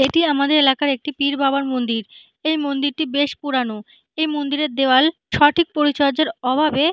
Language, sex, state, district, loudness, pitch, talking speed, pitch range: Bengali, female, West Bengal, Malda, -19 LUFS, 285 Hz, 145 wpm, 270-305 Hz